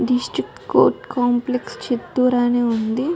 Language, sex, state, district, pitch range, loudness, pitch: Telugu, female, Andhra Pradesh, Chittoor, 240-250 Hz, -20 LUFS, 245 Hz